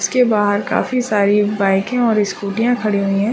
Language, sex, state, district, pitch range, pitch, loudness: Hindi, female, Chhattisgarh, Raigarh, 200-230 Hz, 210 Hz, -16 LUFS